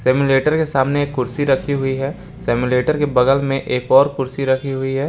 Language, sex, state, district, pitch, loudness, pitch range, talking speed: Hindi, male, Jharkhand, Garhwa, 135 Hz, -17 LUFS, 130-140 Hz, 210 wpm